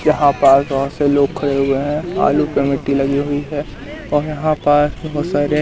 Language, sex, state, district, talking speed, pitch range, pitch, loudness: Hindi, male, Madhya Pradesh, Katni, 225 wpm, 140-150 Hz, 145 Hz, -16 LUFS